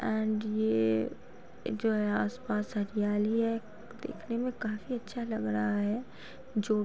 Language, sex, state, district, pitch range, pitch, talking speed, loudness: Hindi, female, Uttar Pradesh, Varanasi, 210-230 Hz, 215 Hz, 140 wpm, -32 LUFS